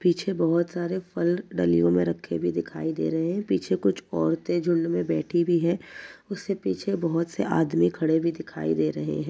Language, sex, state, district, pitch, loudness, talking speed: Hindi, male, Uttar Pradesh, Jyotiba Phule Nagar, 160 Hz, -26 LUFS, 200 wpm